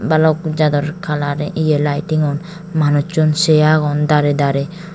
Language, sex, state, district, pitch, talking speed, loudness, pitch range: Chakma, female, Tripura, Dhalai, 155 Hz, 120 wpm, -16 LUFS, 145-160 Hz